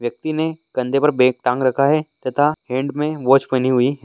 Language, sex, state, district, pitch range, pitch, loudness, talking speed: Hindi, male, Bihar, East Champaran, 130-150 Hz, 135 Hz, -18 LUFS, 220 wpm